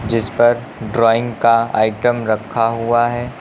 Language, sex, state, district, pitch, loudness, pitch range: Hindi, male, Uttar Pradesh, Lucknow, 115 Hz, -16 LUFS, 115-120 Hz